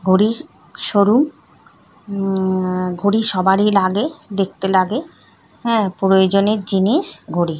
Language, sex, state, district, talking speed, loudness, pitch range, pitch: Bengali, female, West Bengal, North 24 Parganas, 85 wpm, -17 LUFS, 190-215 Hz, 195 Hz